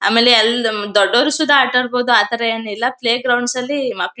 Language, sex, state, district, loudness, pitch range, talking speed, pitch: Kannada, female, Karnataka, Mysore, -15 LUFS, 225-250 Hz, 185 wpm, 245 Hz